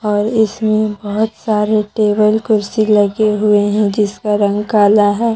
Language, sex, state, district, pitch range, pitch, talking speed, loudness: Hindi, female, Jharkhand, Deoghar, 205-215 Hz, 210 Hz, 155 wpm, -14 LUFS